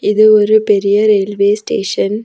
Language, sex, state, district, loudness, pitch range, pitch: Tamil, female, Tamil Nadu, Nilgiris, -12 LUFS, 200-215 Hz, 210 Hz